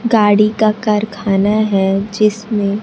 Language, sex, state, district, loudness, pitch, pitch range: Hindi, female, Bihar, Kaimur, -14 LUFS, 210 Hz, 200-215 Hz